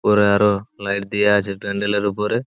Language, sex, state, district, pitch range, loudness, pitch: Bengali, male, West Bengal, Purulia, 100-105 Hz, -19 LUFS, 100 Hz